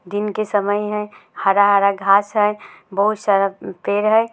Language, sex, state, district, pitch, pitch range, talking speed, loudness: Maithili, female, Bihar, Samastipur, 205 Hz, 200-210 Hz, 165 wpm, -18 LUFS